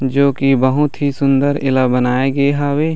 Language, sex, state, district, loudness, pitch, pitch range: Chhattisgarhi, male, Chhattisgarh, Raigarh, -15 LUFS, 140 Hz, 130-145 Hz